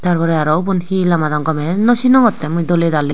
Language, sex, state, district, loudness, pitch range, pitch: Chakma, female, Tripura, Unakoti, -14 LUFS, 155-190 Hz, 170 Hz